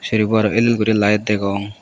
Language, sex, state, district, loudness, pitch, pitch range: Chakma, male, Tripura, West Tripura, -17 LUFS, 105 Hz, 105-110 Hz